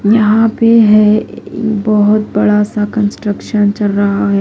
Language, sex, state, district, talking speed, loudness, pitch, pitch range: Hindi, female, Delhi, New Delhi, 135 wpm, -11 LUFS, 210 Hz, 205-215 Hz